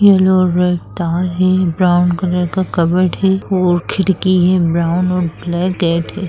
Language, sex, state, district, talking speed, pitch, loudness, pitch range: Hindi, female, Bihar, Gopalganj, 160 wpm, 180 Hz, -14 LUFS, 175-185 Hz